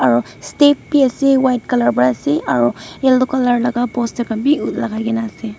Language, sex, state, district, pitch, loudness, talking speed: Nagamese, female, Nagaland, Dimapur, 240 Hz, -16 LUFS, 180 wpm